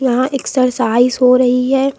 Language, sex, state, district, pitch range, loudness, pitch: Hindi, female, Uttar Pradesh, Lucknow, 250-265 Hz, -13 LUFS, 255 Hz